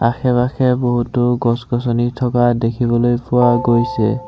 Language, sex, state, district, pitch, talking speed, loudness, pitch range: Assamese, male, Assam, Sonitpur, 120 Hz, 110 wpm, -16 LUFS, 120-125 Hz